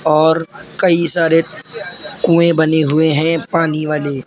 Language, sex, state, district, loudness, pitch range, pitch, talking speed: Hindi, male, Uttar Pradesh, Lalitpur, -14 LUFS, 155-170 Hz, 160 Hz, 125 wpm